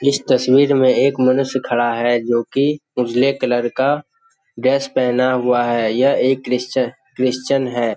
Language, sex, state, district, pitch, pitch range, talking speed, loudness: Hindi, male, Bihar, Jamui, 130 Hz, 120-135 Hz, 150 wpm, -17 LUFS